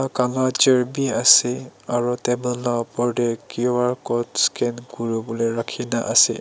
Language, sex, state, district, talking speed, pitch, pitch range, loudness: Nagamese, male, Nagaland, Dimapur, 150 wpm, 120 Hz, 120-125 Hz, -20 LUFS